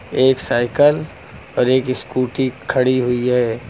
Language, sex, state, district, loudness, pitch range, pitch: Hindi, male, Uttar Pradesh, Lucknow, -17 LUFS, 125-130 Hz, 130 Hz